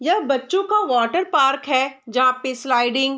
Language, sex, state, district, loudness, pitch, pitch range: Hindi, female, Bihar, Vaishali, -19 LUFS, 270 Hz, 255-320 Hz